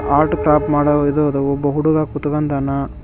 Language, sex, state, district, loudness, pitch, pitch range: Kannada, male, Karnataka, Koppal, -17 LUFS, 145 Hz, 140-150 Hz